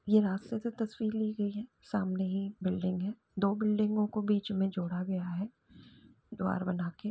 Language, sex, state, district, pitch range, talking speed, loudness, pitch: Hindi, female, Uttar Pradesh, Jalaun, 190-215 Hz, 195 wpm, -33 LUFS, 205 Hz